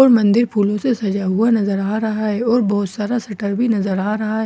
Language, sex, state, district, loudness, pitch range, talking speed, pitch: Hindi, female, Bihar, Katihar, -18 LUFS, 205-230 Hz, 255 wpm, 215 Hz